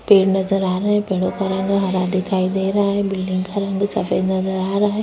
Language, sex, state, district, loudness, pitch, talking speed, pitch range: Hindi, female, Chhattisgarh, Sukma, -19 LUFS, 190 Hz, 260 wpm, 185-200 Hz